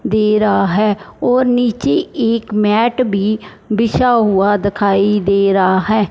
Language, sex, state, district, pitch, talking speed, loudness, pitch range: Hindi, male, Punjab, Fazilka, 210 Hz, 140 wpm, -14 LUFS, 200-230 Hz